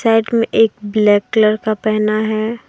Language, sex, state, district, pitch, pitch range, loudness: Hindi, female, Jharkhand, Deoghar, 215 Hz, 215-225 Hz, -15 LUFS